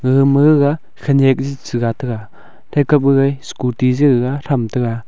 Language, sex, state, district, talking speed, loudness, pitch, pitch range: Wancho, male, Arunachal Pradesh, Longding, 165 wpm, -15 LUFS, 135 Hz, 125-140 Hz